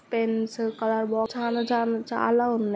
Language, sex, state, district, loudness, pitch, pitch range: Telugu, female, Telangana, Karimnagar, -26 LUFS, 230 Hz, 225-235 Hz